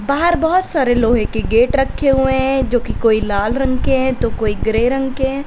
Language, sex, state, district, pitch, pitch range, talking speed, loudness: Hindi, female, Uttar Pradesh, Lalitpur, 265 Hz, 235-270 Hz, 240 wpm, -16 LUFS